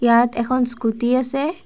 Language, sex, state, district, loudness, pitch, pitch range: Assamese, female, Assam, Kamrup Metropolitan, -17 LUFS, 245 Hz, 235-255 Hz